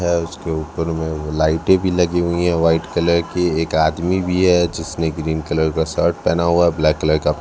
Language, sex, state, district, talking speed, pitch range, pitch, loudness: Hindi, male, Chhattisgarh, Raipur, 210 wpm, 80-85 Hz, 80 Hz, -18 LUFS